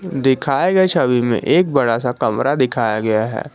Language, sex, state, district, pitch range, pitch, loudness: Hindi, male, Jharkhand, Garhwa, 115-150 Hz, 130 Hz, -16 LUFS